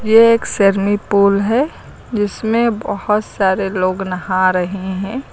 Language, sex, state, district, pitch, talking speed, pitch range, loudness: Hindi, female, Uttar Pradesh, Lucknow, 200 Hz, 125 wpm, 190-220 Hz, -16 LUFS